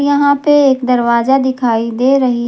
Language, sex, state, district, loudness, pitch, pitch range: Hindi, female, Jharkhand, Garhwa, -12 LUFS, 260 Hz, 240-280 Hz